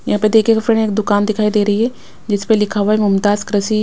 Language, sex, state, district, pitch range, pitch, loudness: Hindi, female, Bihar, West Champaran, 205-220 Hz, 210 Hz, -15 LUFS